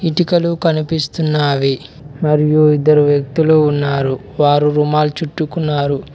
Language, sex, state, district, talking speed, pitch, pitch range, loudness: Telugu, male, Telangana, Mahabubabad, 90 wpm, 150 Hz, 145-160 Hz, -15 LUFS